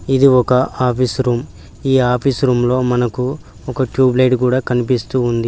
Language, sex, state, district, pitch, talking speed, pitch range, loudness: Telugu, male, Telangana, Mahabubabad, 125 Hz, 165 wpm, 120-130 Hz, -15 LUFS